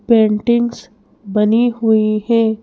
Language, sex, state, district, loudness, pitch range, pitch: Hindi, female, Madhya Pradesh, Bhopal, -15 LUFS, 215-235 Hz, 225 Hz